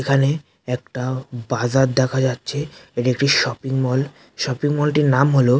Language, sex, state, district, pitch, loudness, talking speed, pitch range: Bengali, male, West Bengal, North 24 Parganas, 130 Hz, -20 LUFS, 150 wpm, 125-140 Hz